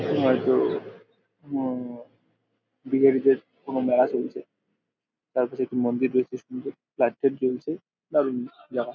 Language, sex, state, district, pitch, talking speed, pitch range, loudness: Bengali, male, West Bengal, Jalpaiguri, 130 Hz, 105 wpm, 125-135 Hz, -25 LUFS